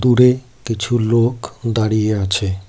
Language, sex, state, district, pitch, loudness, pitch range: Bengali, male, West Bengal, Cooch Behar, 115 Hz, -17 LUFS, 110-125 Hz